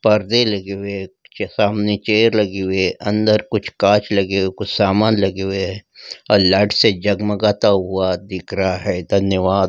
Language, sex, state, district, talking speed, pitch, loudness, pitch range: Hindi, male, West Bengal, Kolkata, 180 wpm, 100 Hz, -17 LUFS, 95-105 Hz